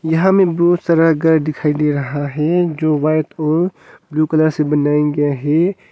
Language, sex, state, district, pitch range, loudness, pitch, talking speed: Hindi, male, Arunachal Pradesh, Longding, 150-165 Hz, -16 LUFS, 155 Hz, 180 wpm